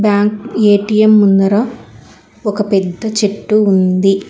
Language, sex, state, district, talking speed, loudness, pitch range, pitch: Telugu, female, Telangana, Hyderabad, 95 wpm, -13 LUFS, 195-215 Hz, 205 Hz